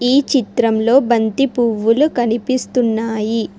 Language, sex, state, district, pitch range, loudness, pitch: Telugu, female, Telangana, Hyderabad, 225-255 Hz, -16 LUFS, 240 Hz